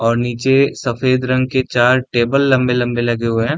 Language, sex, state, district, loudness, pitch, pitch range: Hindi, male, Bihar, Darbhanga, -15 LUFS, 125 Hz, 120-130 Hz